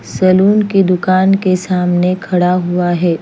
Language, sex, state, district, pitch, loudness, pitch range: Hindi, female, Chandigarh, Chandigarh, 185 Hz, -13 LUFS, 180-190 Hz